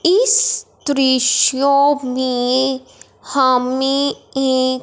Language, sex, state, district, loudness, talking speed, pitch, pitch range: Hindi, male, Punjab, Fazilka, -16 LUFS, 60 wpm, 265 Hz, 255-280 Hz